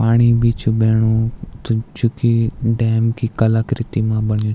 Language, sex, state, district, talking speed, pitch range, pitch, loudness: Garhwali, male, Uttarakhand, Tehri Garhwal, 170 wpm, 110-115 Hz, 115 Hz, -17 LUFS